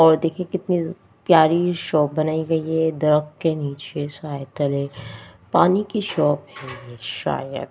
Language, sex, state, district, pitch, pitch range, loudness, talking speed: Hindi, female, Delhi, New Delhi, 150 Hz, 140-165 Hz, -21 LUFS, 130 wpm